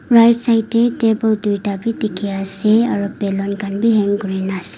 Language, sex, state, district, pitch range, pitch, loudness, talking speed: Nagamese, female, Nagaland, Dimapur, 200-230 Hz, 210 Hz, -17 LUFS, 190 wpm